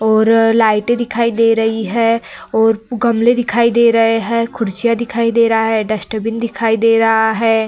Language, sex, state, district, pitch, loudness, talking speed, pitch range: Hindi, female, Bihar, Vaishali, 225 Hz, -14 LUFS, 170 wpm, 225-230 Hz